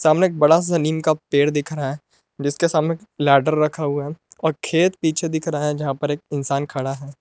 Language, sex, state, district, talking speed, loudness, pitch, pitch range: Hindi, male, Jharkhand, Palamu, 235 wpm, -20 LUFS, 150 Hz, 145-160 Hz